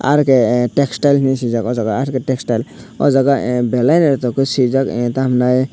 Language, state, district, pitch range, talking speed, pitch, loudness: Kokborok, Tripura, Dhalai, 125-135 Hz, 200 wpm, 130 Hz, -15 LUFS